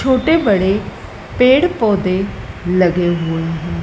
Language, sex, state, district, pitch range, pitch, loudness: Hindi, female, Madhya Pradesh, Dhar, 175-255 Hz, 190 Hz, -15 LUFS